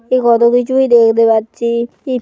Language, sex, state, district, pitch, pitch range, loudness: Bengali, female, West Bengal, Paschim Medinipur, 235 Hz, 230-250 Hz, -12 LUFS